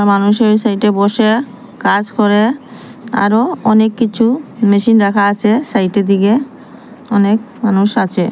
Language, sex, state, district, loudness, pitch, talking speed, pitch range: Bengali, female, Assam, Hailakandi, -13 LUFS, 215 Hz, 115 wpm, 205-235 Hz